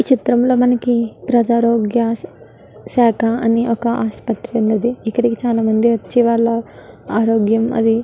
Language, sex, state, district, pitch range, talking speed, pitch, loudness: Telugu, female, Andhra Pradesh, Guntur, 225-240 Hz, 135 wpm, 230 Hz, -16 LUFS